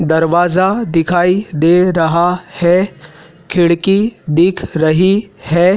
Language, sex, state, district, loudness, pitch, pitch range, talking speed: Hindi, male, Madhya Pradesh, Dhar, -13 LUFS, 175 Hz, 165-185 Hz, 95 wpm